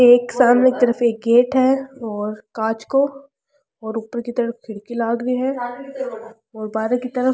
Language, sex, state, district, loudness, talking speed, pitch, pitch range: Rajasthani, female, Rajasthan, Churu, -19 LUFS, 180 wpm, 240 Hz, 225-255 Hz